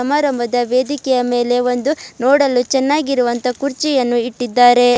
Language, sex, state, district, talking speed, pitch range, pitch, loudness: Kannada, female, Karnataka, Bidar, 120 wpm, 245-275 Hz, 250 Hz, -16 LUFS